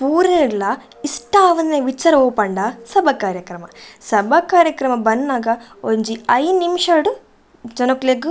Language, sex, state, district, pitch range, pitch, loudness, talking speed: Tulu, female, Karnataka, Dakshina Kannada, 225-330 Hz, 260 Hz, -16 LUFS, 125 wpm